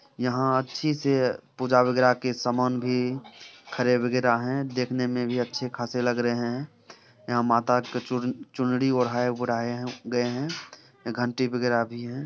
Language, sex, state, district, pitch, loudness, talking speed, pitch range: Hindi, male, Bihar, Samastipur, 125 Hz, -26 LUFS, 160 wpm, 120-125 Hz